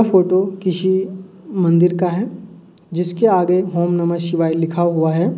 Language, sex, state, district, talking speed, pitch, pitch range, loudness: Hindi, male, Uttar Pradesh, Hamirpur, 145 wpm, 180 Hz, 170-190 Hz, -17 LUFS